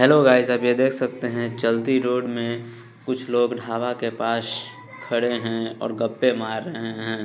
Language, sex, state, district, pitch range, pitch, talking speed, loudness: Hindi, male, Bihar, West Champaran, 115-125 Hz, 120 Hz, 180 wpm, -23 LUFS